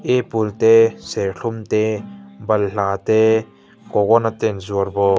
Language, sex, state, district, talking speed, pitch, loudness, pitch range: Mizo, male, Mizoram, Aizawl, 125 wpm, 110 Hz, -18 LUFS, 100-115 Hz